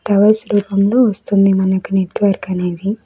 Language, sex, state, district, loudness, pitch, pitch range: Telugu, female, Andhra Pradesh, Sri Satya Sai, -15 LUFS, 200 Hz, 190-205 Hz